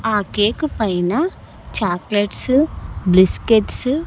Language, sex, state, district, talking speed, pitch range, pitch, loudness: Telugu, male, Andhra Pradesh, Sri Satya Sai, 90 wpm, 205-260 Hz, 215 Hz, -18 LUFS